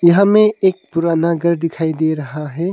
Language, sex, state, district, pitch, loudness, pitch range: Hindi, male, Arunachal Pradesh, Longding, 170 Hz, -16 LUFS, 160-180 Hz